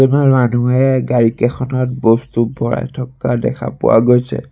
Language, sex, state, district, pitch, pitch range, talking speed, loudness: Assamese, male, Assam, Sonitpur, 125 Hz, 120-130 Hz, 130 wpm, -15 LUFS